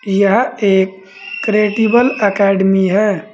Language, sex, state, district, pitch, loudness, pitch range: Hindi, male, Uttar Pradesh, Saharanpur, 200 Hz, -13 LUFS, 195-215 Hz